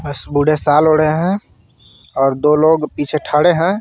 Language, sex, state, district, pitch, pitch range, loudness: Hindi, male, Jharkhand, Garhwa, 150 Hz, 145-155 Hz, -14 LUFS